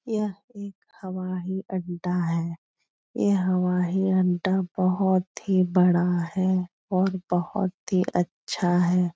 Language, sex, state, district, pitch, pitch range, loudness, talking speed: Hindi, female, Bihar, Supaul, 185 Hz, 180-190 Hz, -25 LUFS, 110 wpm